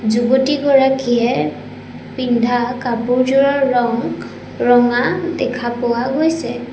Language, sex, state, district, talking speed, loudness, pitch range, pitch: Assamese, female, Assam, Sonitpur, 70 wpm, -16 LUFS, 240-265 Hz, 245 Hz